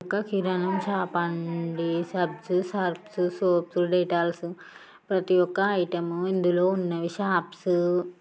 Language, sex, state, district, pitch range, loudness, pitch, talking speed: Telugu, female, Telangana, Nalgonda, 170-185 Hz, -26 LUFS, 180 Hz, 115 wpm